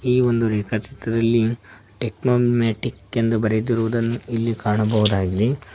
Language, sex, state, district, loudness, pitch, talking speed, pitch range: Kannada, male, Karnataka, Koppal, -21 LUFS, 115 Hz, 95 wpm, 110-120 Hz